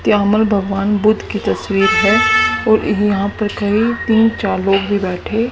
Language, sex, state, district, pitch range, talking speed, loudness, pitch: Hindi, female, Haryana, Charkhi Dadri, 200-220 Hz, 165 wpm, -15 LUFS, 210 Hz